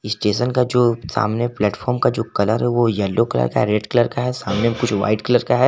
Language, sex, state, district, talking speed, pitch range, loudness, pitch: Hindi, male, Jharkhand, Garhwa, 245 wpm, 105-120 Hz, -19 LUFS, 115 Hz